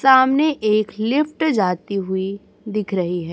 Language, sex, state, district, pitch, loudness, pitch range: Hindi, female, Chhattisgarh, Raipur, 215 Hz, -19 LUFS, 190-265 Hz